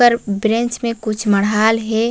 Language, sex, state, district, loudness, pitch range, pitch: Chhattisgarhi, female, Chhattisgarh, Raigarh, -17 LUFS, 215-235 Hz, 220 Hz